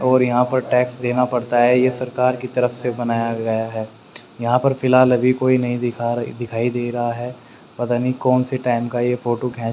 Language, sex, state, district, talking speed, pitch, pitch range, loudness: Hindi, male, Haryana, Rohtak, 215 wpm, 125 Hz, 120-125 Hz, -19 LUFS